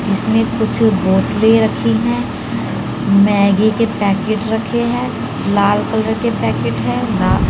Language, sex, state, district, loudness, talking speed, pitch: Hindi, female, Haryana, Jhajjar, -15 LUFS, 130 wpm, 200 Hz